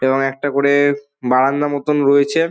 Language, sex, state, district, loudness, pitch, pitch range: Bengali, male, West Bengal, Dakshin Dinajpur, -16 LUFS, 140 Hz, 135-145 Hz